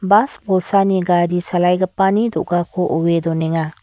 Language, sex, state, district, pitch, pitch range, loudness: Garo, female, Meghalaya, West Garo Hills, 180 Hz, 175-195 Hz, -17 LUFS